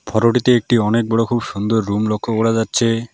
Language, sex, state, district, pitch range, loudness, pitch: Bengali, male, West Bengal, Alipurduar, 110-115 Hz, -17 LUFS, 115 Hz